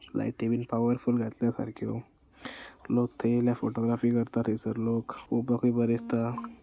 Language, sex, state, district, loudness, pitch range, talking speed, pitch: Konkani, male, Goa, North and South Goa, -29 LUFS, 115-120 Hz, 135 wpm, 120 Hz